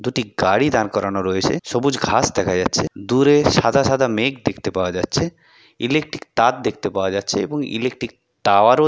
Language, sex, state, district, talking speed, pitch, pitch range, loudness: Bengali, male, West Bengal, Purulia, 170 wpm, 125 Hz, 100-140 Hz, -19 LUFS